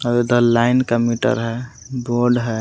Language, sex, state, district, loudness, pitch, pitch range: Hindi, male, Jharkhand, Palamu, -18 LUFS, 120 Hz, 120-125 Hz